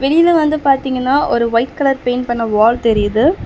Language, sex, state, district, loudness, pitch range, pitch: Tamil, female, Tamil Nadu, Chennai, -14 LUFS, 230-275 Hz, 255 Hz